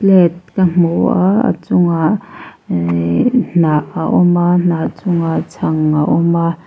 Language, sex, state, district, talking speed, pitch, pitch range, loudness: Mizo, female, Mizoram, Aizawl, 155 wpm, 170 Hz, 160-180 Hz, -14 LUFS